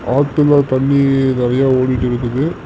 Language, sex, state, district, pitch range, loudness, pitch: Tamil, male, Tamil Nadu, Namakkal, 125-140 Hz, -14 LUFS, 135 Hz